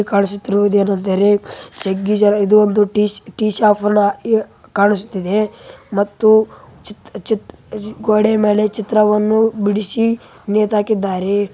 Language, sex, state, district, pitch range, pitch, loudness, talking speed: Kannada, female, Karnataka, Raichur, 205-215 Hz, 210 Hz, -16 LUFS, 90 wpm